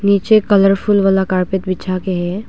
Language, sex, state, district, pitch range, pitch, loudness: Hindi, female, Arunachal Pradesh, Longding, 185-200 Hz, 195 Hz, -14 LUFS